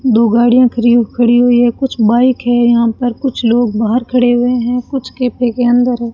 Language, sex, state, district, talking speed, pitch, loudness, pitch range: Hindi, female, Rajasthan, Bikaner, 215 wpm, 240 Hz, -12 LUFS, 235-245 Hz